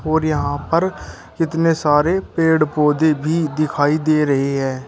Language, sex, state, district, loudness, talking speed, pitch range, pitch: Hindi, male, Uttar Pradesh, Shamli, -17 LUFS, 145 wpm, 145-165 Hz, 155 Hz